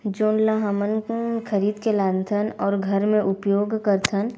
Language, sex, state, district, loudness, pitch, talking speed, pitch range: Chhattisgarhi, female, Chhattisgarh, Raigarh, -22 LUFS, 205 Hz, 180 wpm, 200-220 Hz